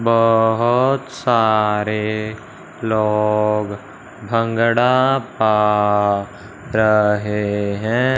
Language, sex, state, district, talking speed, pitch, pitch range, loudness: Hindi, male, Punjab, Fazilka, 50 wpm, 110 Hz, 105-115 Hz, -17 LUFS